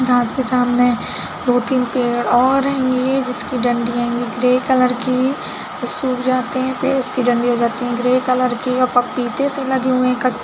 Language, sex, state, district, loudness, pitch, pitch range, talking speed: Hindi, female, Chhattisgarh, Balrampur, -17 LUFS, 250 Hz, 245-255 Hz, 180 wpm